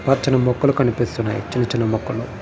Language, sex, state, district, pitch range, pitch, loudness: Telugu, male, Andhra Pradesh, Srikakulam, 115-130 Hz, 120 Hz, -20 LUFS